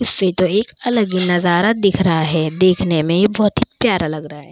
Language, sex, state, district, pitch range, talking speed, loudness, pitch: Hindi, female, Uttar Pradesh, Jyotiba Phule Nagar, 165-210 Hz, 240 wpm, -16 LUFS, 185 Hz